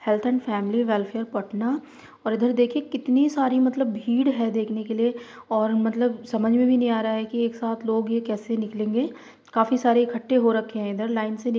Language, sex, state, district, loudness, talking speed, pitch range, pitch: Hindi, female, Bihar, Madhepura, -24 LUFS, 225 wpm, 220-245 Hz, 230 Hz